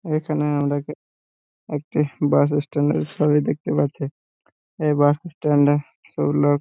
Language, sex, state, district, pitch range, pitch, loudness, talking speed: Bengali, male, West Bengal, Purulia, 145-150 Hz, 145 Hz, -21 LUFS, 125 wpm